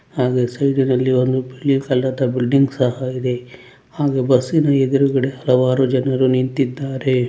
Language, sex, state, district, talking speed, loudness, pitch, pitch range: Kannada, male, Karnataka, Dakshina Kannada, 125 wpm, -18 LUFS, 130 Hz, 125-135 Hz